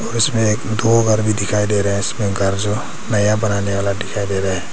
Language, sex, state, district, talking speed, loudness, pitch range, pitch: Hindi, male, Arunachal Pradesh, Papum Pare, 255 wpm, -18 LUFS, 100-110 Hz, 105 Hz